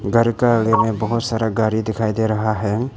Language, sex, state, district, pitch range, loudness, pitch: Hindi, male, Arunachal Pradesh, Papum Pare, 110-115 Hz, -19 LUFS, 110 Hz